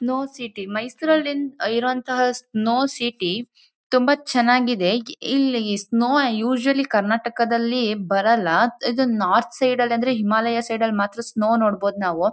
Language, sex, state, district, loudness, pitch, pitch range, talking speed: Kannada, female, Karnataka, Mysore, -21 LUFS, 235 Hz, 220-255 Hz, 110 wpm